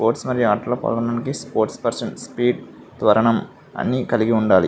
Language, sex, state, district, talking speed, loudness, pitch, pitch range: Telugu, male, Andhra Pradesh, Visakhapatnam, 130 wpm, -21 LUFS, 120 Hz, 115-125 Hz